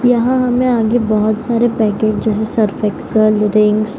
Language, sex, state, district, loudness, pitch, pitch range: Hindi, female, Bihar, Madhepura, -14 LUFS, 220 Hz, 215-240 Hz